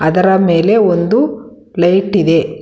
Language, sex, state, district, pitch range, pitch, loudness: Kannada, female, Karnataka, Bangalore, 170-195 Hz, 185 Hz, -12 LUFS